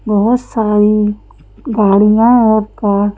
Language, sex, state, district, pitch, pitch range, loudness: Hindi, female, Madhya Pradesh, Bhopal, 210 Hz, 205-225 Hz, -12 LUFS